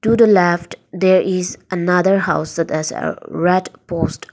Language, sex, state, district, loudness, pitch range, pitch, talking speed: English, female, Nagaland, Dimapur, -17 LUFS, 175-190 Hz, 180 Hz, 165 wpm